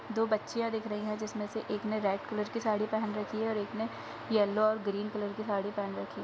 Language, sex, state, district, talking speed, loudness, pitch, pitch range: Hindi, female, Bihar, Darbhanga, 270 wpm, -33 LUFS, 215 Hz, 210-220 Hz